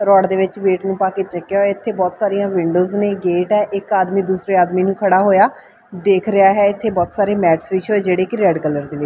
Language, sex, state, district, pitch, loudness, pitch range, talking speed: Punjabi, female, Punjab, Fazilka, 195 Hz, -16 LUFS, 180-200 Hz, 250 wpm